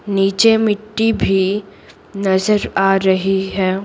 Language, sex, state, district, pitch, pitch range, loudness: Hindi, female, Bihar, Patna, 195 Hz, 190-210 Hz, -16 LUFS